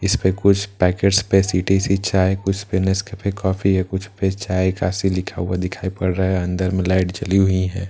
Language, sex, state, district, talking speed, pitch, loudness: Hindi, male, Bihar, Katihar, 210 wpm, 95 Hz, -19 LUFS